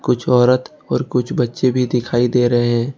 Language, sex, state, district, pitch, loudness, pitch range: Hindi, male, Jharkhand, Ranchi, 125 Hz, -17 LUFS, 120-125 Hz